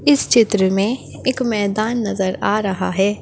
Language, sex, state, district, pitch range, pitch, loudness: Hindi, female, Maharashtra, Chandrapur, 195-230 Hz, 210 Hz, -18 LUFS